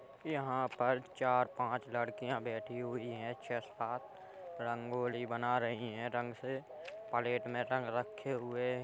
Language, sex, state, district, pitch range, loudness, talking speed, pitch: Hindi, male, Uttar Pradesh, Hamirpur, 120-130 Hz, -38 LUFS, 135 wpm, 125 Hz